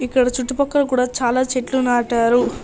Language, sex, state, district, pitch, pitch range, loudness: Telugu, male, Andhra Pradesh, Srikakulam, 255 Hz, 245-260 Hz, -18 LUFS